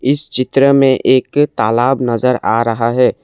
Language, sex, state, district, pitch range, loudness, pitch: Hindi, male, Assam, Kamrup Metropolitan, 120-135 Hz, -13 LUFS, 130 Hz